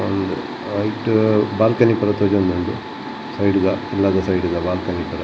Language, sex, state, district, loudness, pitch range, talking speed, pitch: Tulu, male, Karnataka, Dakshina Kannada, -19 LUFS, 95-105 Hz, 135 wpm, 100 Hz